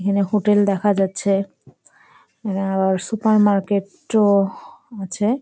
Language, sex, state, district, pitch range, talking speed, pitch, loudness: Bengali, female, West Bengal, Jalpaiguri, 195-210 Hz, 110 wpm, 200 Hz, -19 LUFS